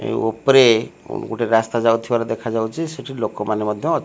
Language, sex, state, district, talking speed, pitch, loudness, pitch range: Odia, male, Odisha, Malkangiri, 150 wpm, 115 Hz, -19 LUFS, 110-125 Hz